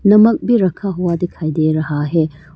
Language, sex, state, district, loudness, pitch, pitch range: Hindi, female, Arunachal Pradesh, Papum Pare, -16 LUFS, 170 Hz, 155-200 Hz